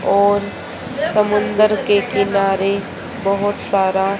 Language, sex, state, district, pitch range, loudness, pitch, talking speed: Hindi, female, Haryana, Jhajjar, 195-210 Hz, -17 LUFS, 200 Hz, 85 wpm